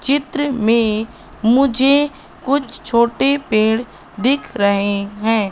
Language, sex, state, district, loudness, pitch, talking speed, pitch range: Hindi, female, Madhya Pradesh, Katni, -17 LUFS, 235 Hz, 100 wpm, 215-275 Hz